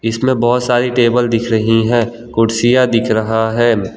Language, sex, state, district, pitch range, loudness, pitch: Hindi, male, Gujarat, Valsad, 115-120 Hz, -14 LUFS, 115 Hz